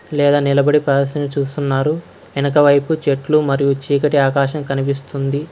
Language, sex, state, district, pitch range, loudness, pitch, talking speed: Telugu, male, Karnataka, Bangalore, 140-145 Hz, -16 LUFS, 140 Hz, 110 wpm